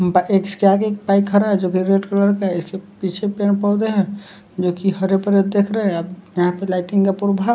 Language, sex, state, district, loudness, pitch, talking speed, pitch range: Hindi, male, Bihar, West Champaran, -18 LUFS, 195 Hz, 225 wpm, 190-200 Hz